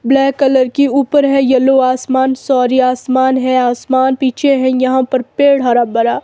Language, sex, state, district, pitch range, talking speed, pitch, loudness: Hindi, female, Himachal Pradesh, Shimla, 255-270 Hz, 145 wpm, 260 Hz, -12 LUFS